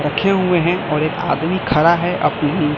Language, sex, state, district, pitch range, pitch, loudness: Hindi, male, Chhattisgarh, Raipur, 150-180 Hz, 170 Hz, -17 LUFS